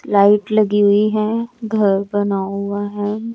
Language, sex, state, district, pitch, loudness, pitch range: Hindi, male, Chandigarh, Chandigarh, 205 Hz, -17 LUFS, 200-215 Hz